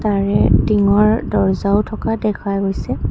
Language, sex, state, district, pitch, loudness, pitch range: Assamese, female, Assam, Kamrup Metropolitan, 205 Hz, -16 LUFS, 200-215 Hz